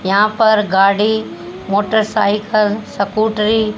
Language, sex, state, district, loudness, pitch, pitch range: Hindi, female, Haryana, Charkhi Dadri, -15 LUFS, 210 Hz, 200-215 Hz